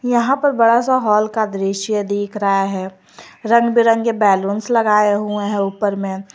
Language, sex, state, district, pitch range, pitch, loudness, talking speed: Hindi, female, Jharkhand, Garhwa, 200-230 Hz, 210 Hz, -16 LUFS, 160 wpm